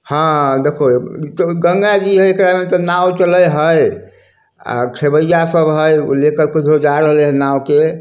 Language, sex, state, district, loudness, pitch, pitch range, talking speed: Hindi, male, Bihar, Samastipur, -13 LUFS, 155 Hz, 145-175 Hz, 170 wpm